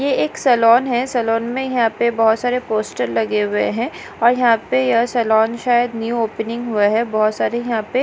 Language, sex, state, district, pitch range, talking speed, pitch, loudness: Hindi, female, Maharashtra, Aurangabad, 225-245 Hz, 215 wpm, 235 Hz, -17 LUFS